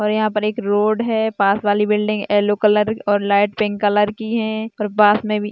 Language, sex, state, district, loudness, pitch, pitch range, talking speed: Hindi, female, Maharashtra, Aurangabad, -18 LUFS, 210 Hz, 205-215 Hz, 240 wpm